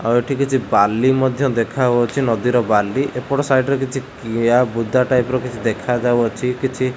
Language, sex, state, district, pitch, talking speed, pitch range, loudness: Odia, male, Odisha, Khordha, 125 Hz, 165 wpm, 115-130 Hz, -18 LUFS